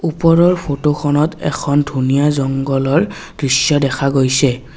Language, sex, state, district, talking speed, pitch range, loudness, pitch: Assamese, male, Assam, Kamrup Metropolitan, 100 wpm, 135-155 Hz, -15 LUFS, 145 Hz